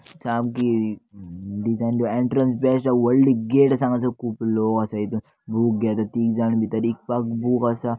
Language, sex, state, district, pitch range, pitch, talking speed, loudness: Konkani, male, Goa, North and South Goa, 110-125 Hz, 115 Hz, 165 wpm, -22 LUFS